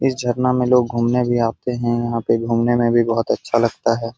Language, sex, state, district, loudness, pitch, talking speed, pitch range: Hindi, male, Bihar, Jamui, -18 LUFS, 120 Hz, 245 wpm, 115-125 Hz